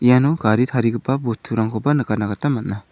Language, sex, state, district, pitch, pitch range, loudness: Garo, male, Meghalaya, South Garo Hills, 115 Hz, 110-135 Hz, -20 LUFS